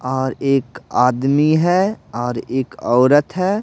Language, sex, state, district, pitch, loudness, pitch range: Hindi, male, Bihar, Patna, 130 Hz, -17 LUFS, 125-155 Hz